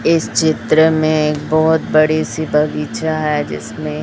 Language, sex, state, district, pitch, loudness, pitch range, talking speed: Hindi, male, Chhattisgarh, Raipur, 155 Hz, -15 LUFS, 115-155 Hz, 150 wpm